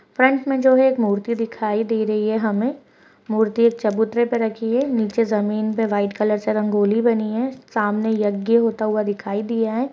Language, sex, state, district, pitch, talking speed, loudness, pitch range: Hindi, female, West Bengal, Purulia, 220 Hz, 200 wpm, -20 LUFS, 210-235 Hz